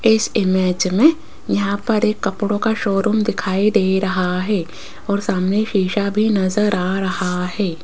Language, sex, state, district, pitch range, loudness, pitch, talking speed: Hindi, female, Rajasthan, Jaipur, 185-215 Hz, -18 LUFS, 200 Hz, 160 wpm